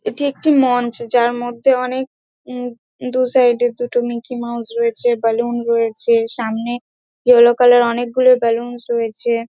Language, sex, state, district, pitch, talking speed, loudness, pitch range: Bengali, female, West Bengal, Dakshin Dinajpur, 240 Hz, 160 wpm, -16 LUFS, 235-250 Hz